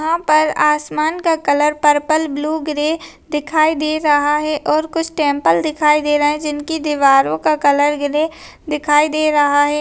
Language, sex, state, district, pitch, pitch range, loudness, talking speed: Hindi, female, Rajasthan, Nagaur, 300 Hz, 295-310 Hz, -16 LUFS, 170 wpm